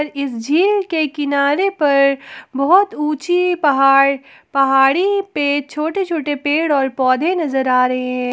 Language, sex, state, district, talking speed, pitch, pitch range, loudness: Hindi, female, Jharkhand, Palamu, 135 wpm, 290 Hz, 275-325 Hz, -16 LUFS